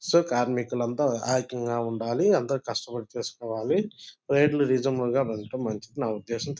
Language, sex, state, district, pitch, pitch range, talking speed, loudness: Telugu, male, Andhra Pradesh, Guntur, 125 Hz, 115-140 Hz, 145 wpm, -27 LUFS